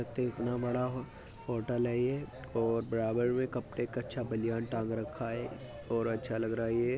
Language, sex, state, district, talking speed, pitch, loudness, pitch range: Hindi, male, Uttar Pradesh, Muzaffarnagar, 200 wpm, 120 Hz, -34 LUFS, 115-125 Hz